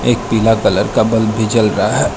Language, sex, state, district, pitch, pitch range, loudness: Hindi, male, Arunachal Pradesh, Lower Dibang Valley, 110 Hz, 110-115 Hz, -14 LUFS